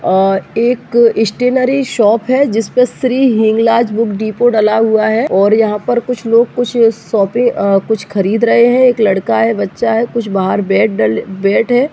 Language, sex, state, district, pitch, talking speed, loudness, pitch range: Hindi, male, Uttar Pradesh, Jyotiba Phule Nagar, 225 Hz, 180 wpm, -12 LUFS, 205-240 Hz